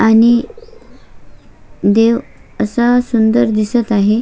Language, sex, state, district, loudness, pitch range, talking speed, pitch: Marathi, female, Maharashtra, Solapur, -13 LUFS, 220-240 Hz, 85 wpm, 230 Hz